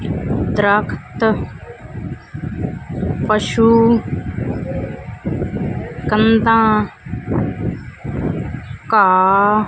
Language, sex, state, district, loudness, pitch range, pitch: Punjabi, female, Punjab, Fazilka, -17 LUFS, 205-225 Hz, 215 Hz